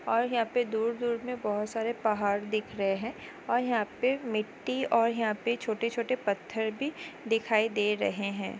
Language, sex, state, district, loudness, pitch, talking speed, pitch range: Hindi, female, Goa, North and South Goa, -30 LUFS, 225 Hz, 175 wpm, 215-240 Hz